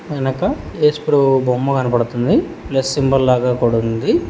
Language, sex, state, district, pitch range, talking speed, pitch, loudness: Telugu, male, Telangana, Hyderabad, 125-140 Hz, 125 wpm, 135 Hz, -16 LUFS